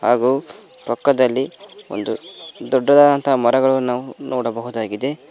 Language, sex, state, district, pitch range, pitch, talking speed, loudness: Kannada, male, Karnataka, Koppal, 120-135 Hz, 130 Hz, 70 wpm, -18 LUFS